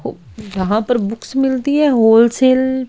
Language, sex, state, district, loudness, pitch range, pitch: Hindi, female, Haryana, Rohtak, -14 LUFS, 225-260 Hz, 250 Hz